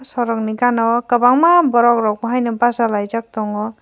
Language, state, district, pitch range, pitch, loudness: Kokborok, Tripura, Dhalai, 225-245 Hz, 235 Hz, -16 LUFS